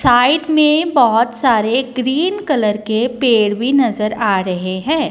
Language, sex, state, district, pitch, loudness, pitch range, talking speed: Hindi, female, Punjab, Kapurthala, 245 Hz, -15 LUFS, 215-285 Hz, 150 wpm